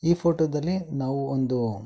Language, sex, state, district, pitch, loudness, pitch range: Kannada, male, Karnataka, Bellary, 140 Hz, -26 LUFS, 130-170 Hz